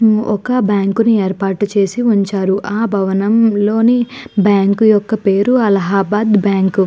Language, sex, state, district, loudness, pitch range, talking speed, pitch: Telugu, female, Andhra Pradesh, Guntur, -14 LUFS, 195-225 Hz, 120 wpm, 205 Hz